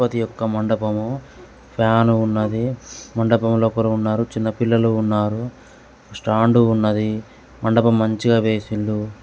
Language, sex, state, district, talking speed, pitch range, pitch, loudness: Telugu, male, Andhra Pradesh, Guntur, 95 wpm, 110-115 Hz, 110 Hz, -19 LUFS